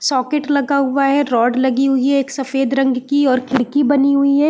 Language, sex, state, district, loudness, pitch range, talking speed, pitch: Hindi, female, Uttarakhand, Uttarkashi, -16 LUFS, 260-280 Hz, 240 wpm, 275 Hz